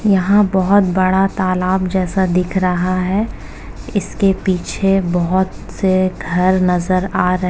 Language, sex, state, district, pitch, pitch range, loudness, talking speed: Hindi, female, Uttar Pradesh, Jalaun, 185 Hz, 185-195 Hz, -16 LUFS, 135 wpm